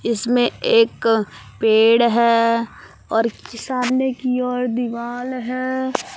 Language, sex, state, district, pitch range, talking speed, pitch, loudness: Hindi, female, Jharkhand, Palamu, 230-255 Hz, 95 wpm, 240 Hz, -19 LUFS